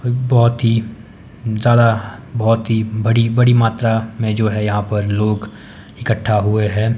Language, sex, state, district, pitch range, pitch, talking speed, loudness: Hindi, male, Himachal Pradesh, Shimla, 105-115 Hz, 110 Hz, 145 wpm, -16 LUFS